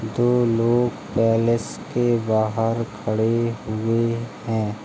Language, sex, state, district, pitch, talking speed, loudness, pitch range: Hindi, male, Uttar Pradesh, Jalaun, 115 Hz, 100 wpm, -22 LUFS, 110-115 Hz